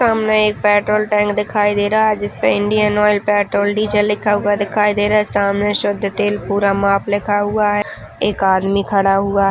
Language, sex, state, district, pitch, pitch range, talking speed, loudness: Hindi, female, Uttarakhand, Tehri Garhwal, 205 Hz, 200-210 Hz, 200 wpm, -16 LUFS